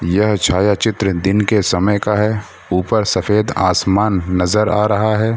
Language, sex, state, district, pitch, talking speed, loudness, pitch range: Hindi, male, Bihar, Gaya, 105 Hz, 165 wpm, -15 LUFS, 95-105 Hz